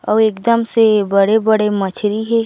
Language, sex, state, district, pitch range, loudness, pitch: Chhattisgarhi, female, Chhattisgarh, Raigarh, 205-225 Hz, -14 LUFS, 220 Hz